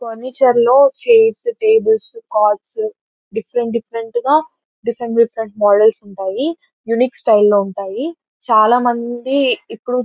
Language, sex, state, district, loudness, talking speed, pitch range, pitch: Telugu, female, Andhra Pradesh, Anantapur, -15 LUFS, 125 wpm, 225-305 Hz, 240 Hz